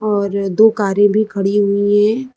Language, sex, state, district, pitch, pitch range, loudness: Hindi, female, Uttar Pradesh, Lucknow, 205 Hz, 200-215 Hz, -14 LUFS